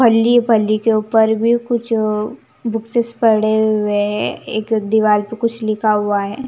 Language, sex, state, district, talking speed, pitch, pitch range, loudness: Hindi, female, Punjab, Kapurthala, 165 wpm, 220 Hz, 215-230 Hz, -16 LUFS